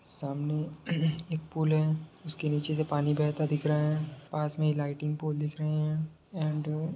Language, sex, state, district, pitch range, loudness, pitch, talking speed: Hindi, male, Jharkhand, Jamtara, 150-155 Hz, -31 LUFS, 155 Hz, 180 wpm